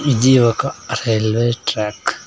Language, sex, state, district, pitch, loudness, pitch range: Telugu, male, Andhra Pradesh, Sri Satya Sai, 120 Hz, -17 LUFS, 110-130 Hz